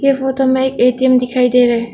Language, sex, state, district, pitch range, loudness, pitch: Hindi, female, Arunachal Pradesh, Longding, 250-265 Hz, -13 LUFS, 255 Hz